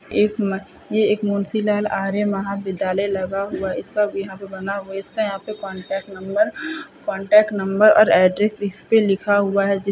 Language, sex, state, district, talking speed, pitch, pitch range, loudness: Hindi, male, Bihar, Purnia, 185 wpm, 200 Hz, 195-210 Hz, -20 LUFS